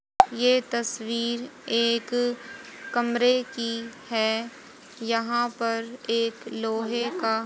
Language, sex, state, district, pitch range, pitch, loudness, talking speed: Hindi, female, Haryana, Jhajjar, 230-245 Hz, 235 Hz, -26 LUFS, 90 wpm